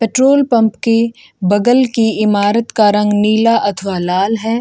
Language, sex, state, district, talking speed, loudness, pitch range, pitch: Hindi, female, Bihar, Gopalganj, 155 wpm, -13 LUFS, 205-230 Hz, 220 Hz